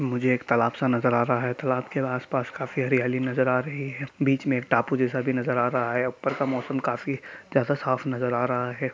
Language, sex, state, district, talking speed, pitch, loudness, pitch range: Hindi, male, Bihar, Sitamarhi, 240 wpm, 130 Hz, -26 LUFS, 125-135 Hz